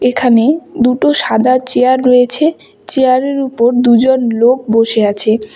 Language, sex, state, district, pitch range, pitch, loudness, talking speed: Bengali, female, West Bengal, Cooch Behar, 235-265 Hz, 250 Hz, -11 LUFS, 130 wpm